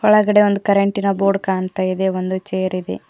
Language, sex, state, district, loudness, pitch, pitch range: Kannada, female, Karnataka, Koppal, -18 LUFS, 195 Hz, 185-200 Hz